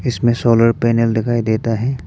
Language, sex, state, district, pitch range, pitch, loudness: Hindi, male, Arunachal Pradesh, Papum Pare, 115-120 Hz, 115 Hz, -16 LUFS